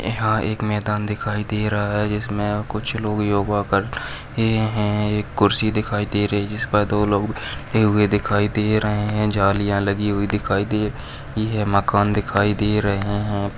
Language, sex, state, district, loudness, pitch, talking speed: Hindi, male, Maharashtra, Chandrapur, -21 LUFS, 105 Hz, 185 wpm